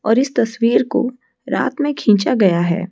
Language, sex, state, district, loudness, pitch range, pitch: Hindi, female, Odisha, Malkangiri, -17 LUFS, 200-255 Hz, 230 Hz